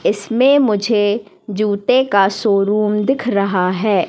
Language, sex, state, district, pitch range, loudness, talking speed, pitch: Hindi, female, Madhya Pradesh, Katni, 200-230 Hz, -15 LUFS, 115 wpm, 210 Hz